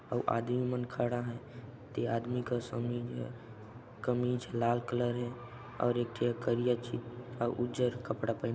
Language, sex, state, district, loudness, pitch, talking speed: Chhattisgarhi, male, Chhattisgarh, Sarguja, -35 LUFS, 120 Hz, 175 wpm